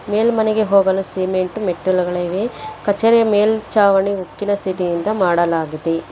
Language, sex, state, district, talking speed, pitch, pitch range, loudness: Kannada, female, Karnataka, Bangalore, 110 wpm, 195 Hz, 180-210 Hz, -17 LUFS